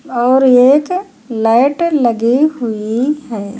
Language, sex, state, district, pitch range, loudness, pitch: Hindi, female, Uttar Pradesh, Lucknow, 230-290 Hz, -13 LUFS, 250 Hz